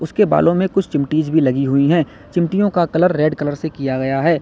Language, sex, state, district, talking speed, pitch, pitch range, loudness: Hindi, male, Uttar Pradesh, Lalitpur, 245 wpm, 160 Hz, 140-170 Hz, -17 LUFS